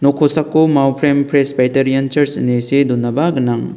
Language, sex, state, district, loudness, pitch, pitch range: Garo, male, Meghalaya, West Garo Hills, -14 LUFS, 140 Hz, 130-145 Hz